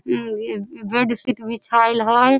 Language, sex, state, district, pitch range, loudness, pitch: Maithili, female, Bihar, Samastipur, 225-245 Hz, -20 LUFS, 230 Hz